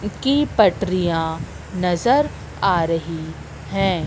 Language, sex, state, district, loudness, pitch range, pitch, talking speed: Hindi, female, Madhya Pradesh, Katni, -20 LUFS, 165-205 Hz, 180 Hz, 90 wpm